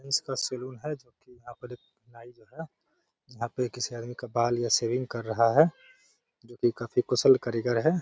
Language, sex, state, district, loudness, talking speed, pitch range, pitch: Hindi, male, Bihar, Gaya, -27 LUFS, 210 wpm, 120-130 Hz, 125 Hz